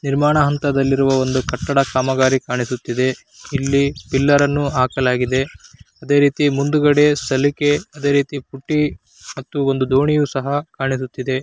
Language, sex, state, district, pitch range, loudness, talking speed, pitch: Kannada, male, Karnataka, Chamarajanagar, 130-145 Hz, -18 LUFS, 115 wpm, 140 Hz